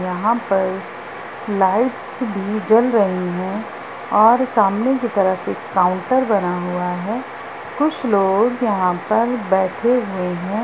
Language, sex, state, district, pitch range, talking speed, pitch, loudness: Hindi, female, Bihar, Darbhanga, 185-235 Hz, 130 wpm, 205 Hz, -18 LUFS